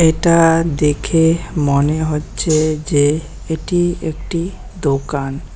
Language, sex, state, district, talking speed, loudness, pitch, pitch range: Bengali, male, West Bengal, Alipurduar, 85 wpm, -16 LUFS, 160 Hz, 150-165 Hz